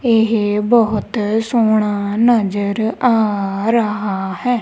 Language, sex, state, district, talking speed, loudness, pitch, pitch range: Punjabi, female, Punjab, Kapurthala, 90 wpm, -16 LUFS, 215 Hz, 205-230 Hz